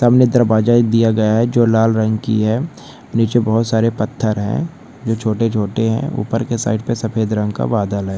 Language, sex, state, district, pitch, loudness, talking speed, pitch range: Hindi, male, Maharashtra, Pune, 115 Hz, -16 LUFS, 205 wpm, 110-120 Hz